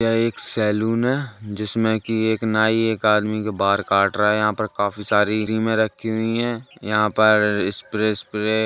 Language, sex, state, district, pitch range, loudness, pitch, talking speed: Hindi, male, Uttar Pradesh, Jalaun, 105-110 Hz, -20 LUFS, 110 Hz, 195 wpm